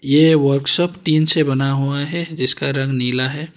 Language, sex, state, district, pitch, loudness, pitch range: Hindi, male, Karnataka, Bangalore, 140 Hz, -16 LUFS, 135-160 Hz